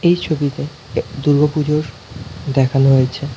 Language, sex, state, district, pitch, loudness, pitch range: Bengali, male, West Bengal, North 24 Parganas, 140 Hz, -17 LUFS, 135-150 Hz